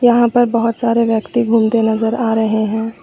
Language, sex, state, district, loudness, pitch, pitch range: Hindi, female, Uttar Pradesh, Lucknow, -15 LUFS, 230 Hz, 225-235 Hz